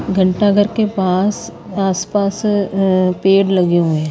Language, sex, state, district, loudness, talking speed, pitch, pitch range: Hindi, female, Haryana, Rohtak, -15 LUFS, 130 wpm, 195 Hz, 185-205 Hz